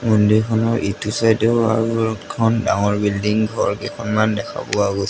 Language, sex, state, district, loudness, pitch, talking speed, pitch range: Assamese, male, Assam, Sonitpur, -18 LUFS, 110 Hz, 140 wpm, 105-115 Hz